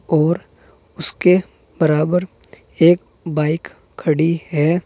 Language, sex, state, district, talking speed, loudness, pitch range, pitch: Hindi, male, Uttar Pradesh, Saharanpur, 85 wpm, -18 LUFS, 155-180 Hz, 165 Hz